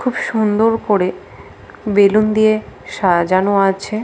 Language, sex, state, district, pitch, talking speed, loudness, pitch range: Bengali, female, West Bengal, Paschim Medinipur, 205 Hz, 120 wpm, -15 LUFS, 185-215 Hz